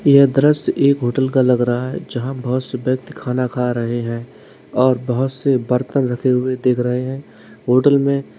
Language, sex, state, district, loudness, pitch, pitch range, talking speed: Hindi, male, Uttar Pradesh, Saharanpur, -18 LUFS, 130 Hz, 125-135 Hz, 195 wpm